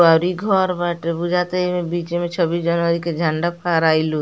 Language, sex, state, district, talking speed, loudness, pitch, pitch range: Bhojpuri, female, Bihar, Muzaffarpur, 185 wpm, -19 LUFS, 170 Hz, 170-175 Hz